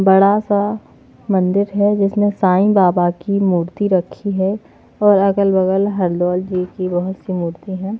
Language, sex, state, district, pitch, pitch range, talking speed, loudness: Hindi, female, Haryana, Jhajjar, 195 Hz, 185-205 Hz, 140 wpm, -16 LUFS